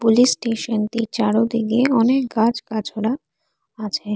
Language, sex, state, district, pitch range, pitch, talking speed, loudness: Bengali, female, Assam, Kamrup Metropolitan, 220-240 Hz, 230 Hz, 85 wpm, -20 LUFS